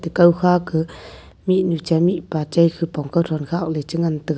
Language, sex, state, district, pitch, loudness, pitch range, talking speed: Wancho, female, Arunachal Pradesh, Longding, 165 Hz, -19 LUFS, 160-175 Hz, 165 wpm